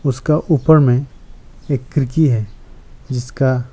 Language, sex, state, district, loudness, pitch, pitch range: Hindi, male, Arunachal Pradesh, Lower Dibang Valley, -16 LUFS, 135 Hz, 125-150 Hz